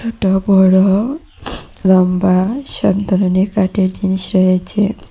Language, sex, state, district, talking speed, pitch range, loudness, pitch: Bengali, female, Assam, Hailakandi, 95 wpm, 185-205 Hz, -14 LUFS, 190 Hz